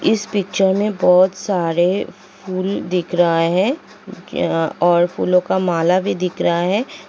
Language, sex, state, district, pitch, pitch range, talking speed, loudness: Hindi, female, Uttar Pradesh, Jalaun, 185 Hz, 175-195 Hz, 145 wpm, -17 LUFS